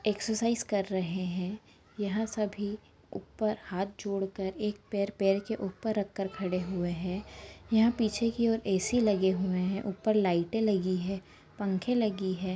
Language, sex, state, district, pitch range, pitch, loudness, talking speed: Kumaoni, female, Uttarakhand, Tehri Garhwal, 190-215 Hz, 200 Hz, -31 LUFS, 165 wpm